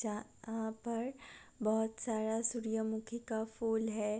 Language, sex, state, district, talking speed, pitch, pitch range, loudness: Hindi, female, Bihar, Gopalganj, 130 wpm, 225 Hz, 220-230 Hz, -38 LUFS